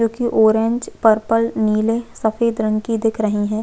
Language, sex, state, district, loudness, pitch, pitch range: Hindi, female, Chhattisgarh, Jashpur, -18 LUFS, 225 Hz, 215-230 Hz